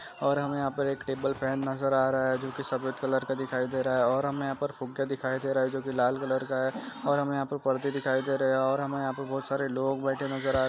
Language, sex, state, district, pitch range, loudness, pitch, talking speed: Hindi, male, Andhra Pradesh, Chittoor, 130-140 Hz, -29 LUFS, 135 Hz, 50 wpm